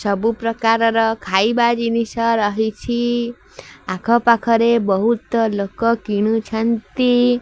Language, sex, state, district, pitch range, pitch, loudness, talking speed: Odia, female, Odisha, Sambalpur, 220-235 Hz, 230 Hz, -18 LUFS, 80 wpm